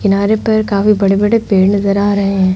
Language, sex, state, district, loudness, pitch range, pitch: Hindi, female, Uttar Pradesh, Hamirpur, -12 LUFS, 195-210 Hz, 200 Hz